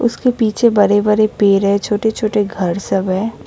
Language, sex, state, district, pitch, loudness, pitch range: Hindi, female, West Bengal, Alipurduar, 210 Hz, -15 LUFS, 200-220 Hz